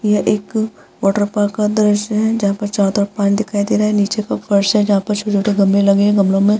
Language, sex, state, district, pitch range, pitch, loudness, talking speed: Hindi, female, Bihar, Vaishali, 200-210 Hz, 205 Hz, -16 LUFS, 280 wpm